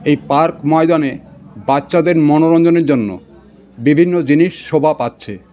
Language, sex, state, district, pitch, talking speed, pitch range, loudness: Bengali, male, West Bengal, Cooch Behar, 155 Hz, 110 wpm, 145-165 Hz, -13 LUFS